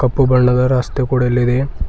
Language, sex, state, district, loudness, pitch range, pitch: Kannada, male, Karnataka, Bidar, -15 LUFS, 125-130 Hz, 125 Hz